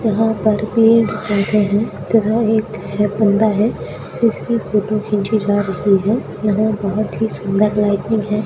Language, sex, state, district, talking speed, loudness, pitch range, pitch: Hindi, female, Rajasthan, Bikaner, 150 wpm, -17 LUFS, 205-220 Hz, 215 Hz